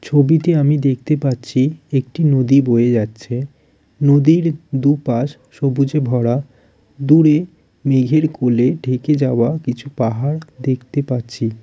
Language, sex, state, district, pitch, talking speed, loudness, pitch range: Bengali, male, West Bengal, Jalpaiguri, 135 Hz, 110 wpm, -17 LUFS, 125-150 Hz